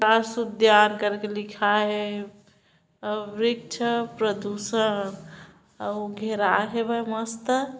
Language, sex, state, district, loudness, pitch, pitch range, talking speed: Chhattisgarhi, female, Chhattisgarh, Bilaspur, -25 LUFS, 210 Hz, 205-225 Hz, 225 wpm